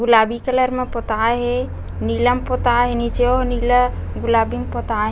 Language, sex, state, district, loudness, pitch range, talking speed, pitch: Chhattisgarhi, female, Chhattisgarh, Bastar, -19 LUFS, 210-245 Hz, 190 wpm, 235 Hz